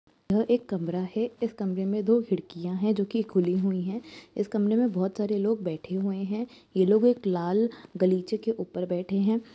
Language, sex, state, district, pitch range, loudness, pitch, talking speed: Hindi, male, Uttar Pradesh, Jyotiba Phule Nagar, 185-220 Hz, -27 LUFS, 200 Hz, 170 wpm